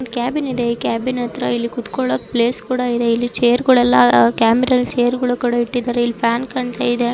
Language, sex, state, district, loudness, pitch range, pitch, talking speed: Kannada, female, Karnataka, Dharwad, -17 LUFS, 235-250 Hz, 240 Hz, 185 wpm